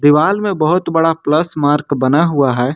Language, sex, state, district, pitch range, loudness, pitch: Hindi, male, Jharkhand, Ranchi, 145-165 Hz, -14 LUFS, 150 Hz